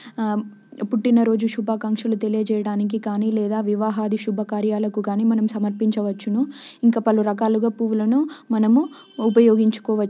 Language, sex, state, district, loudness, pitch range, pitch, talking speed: Telugu, female, Telangana, Nalgonda, -21 LUFS, 215-230 Hz, 220 Hz, 105 wpm